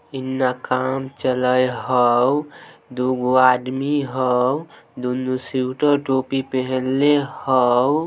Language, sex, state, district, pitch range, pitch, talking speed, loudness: Maithili, male, Bihar, Samastipur, 125-135 Hz, 130 Hz, 90 wpm, -20 LUFS